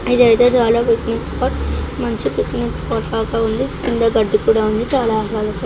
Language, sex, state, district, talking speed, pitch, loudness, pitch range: Telugu, female, Andhra Pradesh, Krishna, 170 wpm, 220 Hz, -17 LUFS, 210-230 Hz